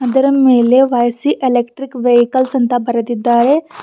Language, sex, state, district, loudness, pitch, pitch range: Kannada, female, Karnataka, Bidar, -13 LUFS, 245 Hz, 240-265 Hz